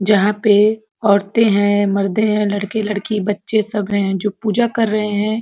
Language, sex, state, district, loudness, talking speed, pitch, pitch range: Hindi, female, Uttar Pradesh, Ghazipur, -17 LUFS, 175 wpm, 210 Hz, 205-215 Hz